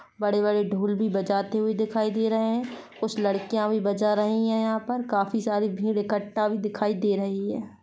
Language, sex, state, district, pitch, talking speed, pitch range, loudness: Hindi, female, Chhattisgarh, Rajnandgaon, 210 Hz, 200 wpm, 205-220 Hz, -26 LUFS